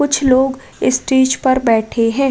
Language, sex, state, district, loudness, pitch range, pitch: Hindi, female, Uttar Pradesh, Budaun, -15 LUFS, 250-270 Hz, 260 Hz